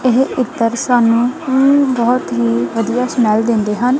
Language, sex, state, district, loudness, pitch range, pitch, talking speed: Punjabi, female, Punjab, Kapurthala, -14 LUFS, 230-255 Hz, 245 Hz, 135 wpm